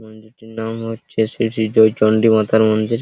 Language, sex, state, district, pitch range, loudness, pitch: Bengali, male, West Bengal, Purulia, 110-115 Hz, -16 LUFS, 110 Hz